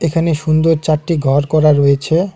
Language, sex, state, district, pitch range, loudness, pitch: Bengali, male, West Bengal, Alipurduar, 145-165 Hz, -14 LUFS, 155 Hz